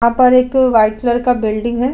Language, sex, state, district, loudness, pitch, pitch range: Hindi, female, Uttar Pradesh, Budaun, -13 LUFS, 240 Hz, 235-255 Hz